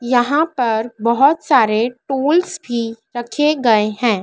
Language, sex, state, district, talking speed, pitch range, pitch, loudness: Hindi, female, Madhya Pradesh, Dhar, 130 wpm, 225-290 Hz, 240 Hz, -16 LUFS